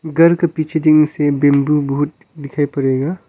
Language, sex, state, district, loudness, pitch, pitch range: Hindi, male, Arunachal Pradesh, Longding, -15 LUFS, 150 Hz, 140-160 Hz